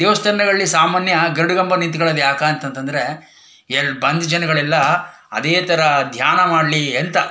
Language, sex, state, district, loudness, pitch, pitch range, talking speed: Kannada, male, Karnataka, Chamarajanagar, -16 LUFS, 165 Hz, 145-175 Hz, 115 wpm